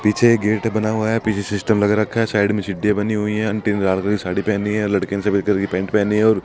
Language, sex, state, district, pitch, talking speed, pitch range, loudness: Hindi, male, Rajasthan, Jaipur, 105 Hz, 290 wpm, 100-110 Hz, -19 LUFS